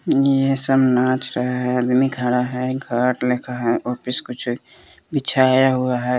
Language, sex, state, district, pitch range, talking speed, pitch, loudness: Hindi, male, Bihar, West Champaran, 125-130 Hz, 145 wpm, 125 Hz, -19 LUFS